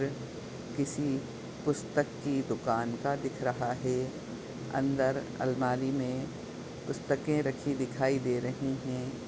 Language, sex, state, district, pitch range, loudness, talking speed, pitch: Hindi, male, Chhattisgarh, Sukma, 125-140 Hz, -33 LUFS, 125 wpm, 130 Hz